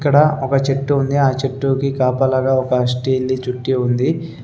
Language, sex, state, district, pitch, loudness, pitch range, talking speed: Telugu, male, Telangana, Adilabad, 130 Hz, -17 LUFS, 130-135 Hz, 160 wpm